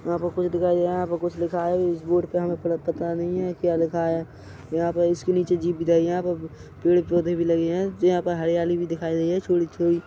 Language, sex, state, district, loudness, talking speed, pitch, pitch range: Hindi, male, Chhattisgarh, Rajnandgaon, -24 LUFS, 270 wpm, 175 Hz, 170-175 Hz